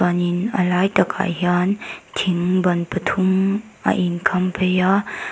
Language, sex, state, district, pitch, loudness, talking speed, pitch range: Mizo, female, Mizoram, Aizawl, 185 Hz, -20 LUFS, 145 wpm, 180-195 Hz